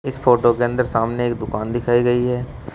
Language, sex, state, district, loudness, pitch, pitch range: Hindi, male, Uttar Pradesh, Shamli, -19 LUFS, 120 Hz, 120-125 Hz